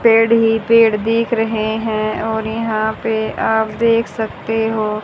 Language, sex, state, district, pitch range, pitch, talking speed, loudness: Hindi, male, Haryana, Charkhi Dadri, 220-230 Hz, 225 Hz, 155 wpm, -16 LUFS